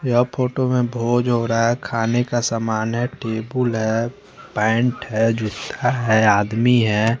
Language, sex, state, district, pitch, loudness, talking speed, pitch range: Hindi, male, Chandigarh, Chandigarh, 115 Hz, -20 LUFS, 160 wpm, 110-125 Hz